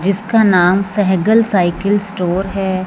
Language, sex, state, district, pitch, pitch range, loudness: Hindi, male, Punjab, Fazilka, 195 Hz, 185-205 Hz, -14 LUFS